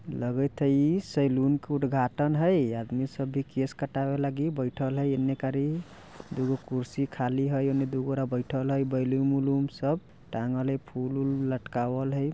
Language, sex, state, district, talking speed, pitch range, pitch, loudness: Bajjika, male, Bihar, Vaishali, 150 wpm, 130-140 Hz, 135 Hz, -29 LUFS